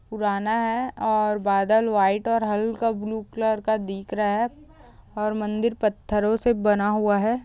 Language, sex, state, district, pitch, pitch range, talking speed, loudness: Hindi, female, Andhra Pradesh, Chittoor, 215 Hz, 210-225 Hz, 160 wpm, -23 LUFS